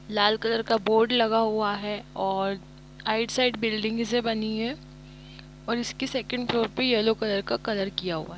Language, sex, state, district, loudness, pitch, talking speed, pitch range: Hindi, female, Jharkhand, Jamtara, -26 LUFS, 225 Hz, 170 wpm, 210-230 Hz